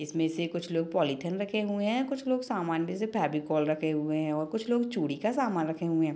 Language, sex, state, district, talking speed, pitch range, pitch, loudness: Hindi, female, Bihar, Gopalganj, 225 wpm, 155-215 Hz, 170 Hz, -30 LUFS